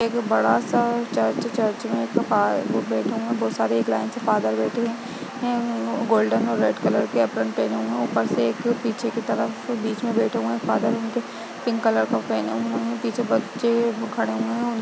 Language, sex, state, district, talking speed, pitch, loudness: Hindi, female, Uttar Pradesh, Jyotiba Phule Nagar, 200 wpm, 220 Hz, -23 LUFS